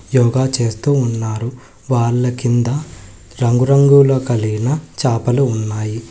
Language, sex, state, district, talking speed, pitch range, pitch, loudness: Telugu, male, Telangana, Hyderabad, 90 wpm, 110-130 Hz, 120 Hz, -16 LUFS